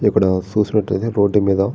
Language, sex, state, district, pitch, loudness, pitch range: Telugu, male, Andhra Pradesh, Srikakulam, 100 Hz, -17 LUFS, 95-105 Hz